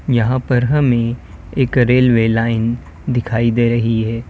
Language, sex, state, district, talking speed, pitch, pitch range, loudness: Hindi, male, Uttar Pradesh, Lalitpur, 140 wpm, 120 Hz, 115-125 Hz, -16 LUFS